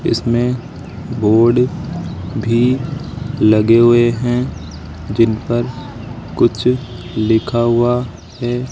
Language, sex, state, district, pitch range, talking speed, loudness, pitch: Hindi, male, Rajasthan, Jaipur, 110-125 Hz, 85 wpm, -16 LUFS, 120 Hz